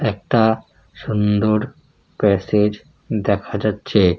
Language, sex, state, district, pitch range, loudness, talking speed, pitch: Bengali, male, West Bengal, Jalpaiguri, 100-110 Hz, -19 LUFS, 70 wpm, 105 Hz